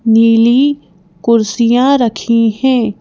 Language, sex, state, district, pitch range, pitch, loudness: Hindi, female, Madhya Pradesh, Bhopal, 225-250 Hz, 230 Hz, -11 LUFS